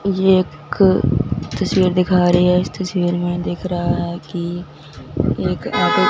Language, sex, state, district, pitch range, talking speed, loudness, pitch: Hindi, male, Punjab, Fazilka, 170-185 Hz, 155 wpm, -18 LUFS, 175 Hz